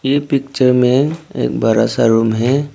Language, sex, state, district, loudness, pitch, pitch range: Hindi, male, Arunachal Pradesh, Papum Pare, -15 LUFS, 135 Hz, 125-140 Hz